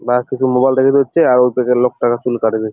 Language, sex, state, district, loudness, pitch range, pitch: Bengali, male, West Bengal, Jalpaiguri, -14 LUFS, 120-130 Hz, 125 Hz